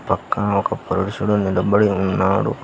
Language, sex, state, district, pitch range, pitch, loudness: Telugu, male, Telangana, Hyderabad, 95-100 Hz, 95 Hz, -19 LUFS